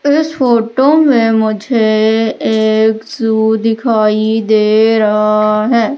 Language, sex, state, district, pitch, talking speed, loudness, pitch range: Hindi, female, Madhya Pradesh, Umaria, 220 Hz, 100 wpm, -11 LUFS, 215-235 Hz